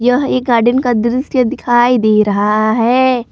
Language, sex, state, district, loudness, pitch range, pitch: Hindi, female, Jharkhand, Palamu, -12 LUFS, 230-255 Hz, 240 Hz